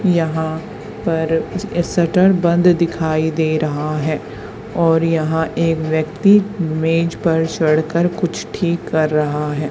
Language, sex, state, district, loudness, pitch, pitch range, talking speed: Hindi, female, Haryana, Charkhi Dadri, -17 LUFS, 165 Hz, 155-170 Hz, 125 wpm